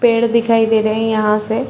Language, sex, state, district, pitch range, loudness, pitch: Hindi, female, Chhattisgarh, Raigarh, 215-230 Hz, -15 LUFS, 225 Hz